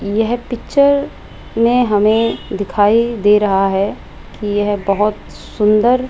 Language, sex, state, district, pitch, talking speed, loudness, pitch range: Hindi, female, Rajasthan, Jaipur, 215 Hz, 130 wpm, -15 LUFS, 205-235 Hz